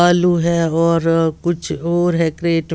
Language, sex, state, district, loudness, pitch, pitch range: Hindi, female, Bihar, West Champaran, -17 LUFS, 170 Hz, 165-175 Hz